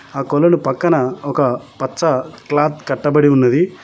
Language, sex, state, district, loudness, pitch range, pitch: Telugu, male, Telangana, Mahabubabad, -16 LUFS, 135-155 Hz, 145 Hz